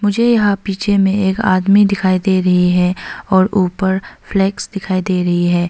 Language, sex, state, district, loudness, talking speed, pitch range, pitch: Hindi, female, Arunachal Pradesh, Longding, -15 LUFS, 170 wpm, 185-200 Hz, 190 Hz